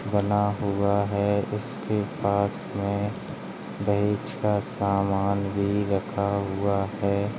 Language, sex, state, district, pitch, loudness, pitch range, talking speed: Hindi, male, Uttar Pradesh, Jalaun, 100 Hz, -26 LUFS, 100-105 Hz, 105 wpm